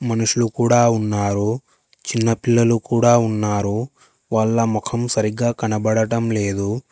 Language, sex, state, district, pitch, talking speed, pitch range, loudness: Telugu, male, Telangana, Hyderabad, 115 Hz, 105 wpm, 110-120 Hz, -19 LUFS